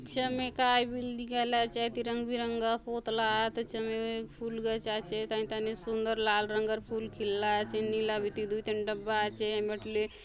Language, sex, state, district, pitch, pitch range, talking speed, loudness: Halbi, female, Chhattisgarh, Bastar, 220 Hz, 215-235 Hz, 195 wpm, -32 LUFS